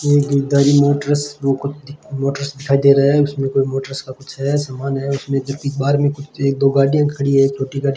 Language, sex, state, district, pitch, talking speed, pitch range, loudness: Hindi, male, Rajasthan, Bikaner, 140 Hz, 235 wpm, 135-145 Hz, -17 LUFS